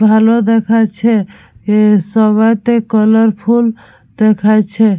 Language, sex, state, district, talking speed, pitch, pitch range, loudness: Bengali, female, West Bengal, Purulia, 70 wpm, 220 Hz, 215-225 Hz, -11 LUFS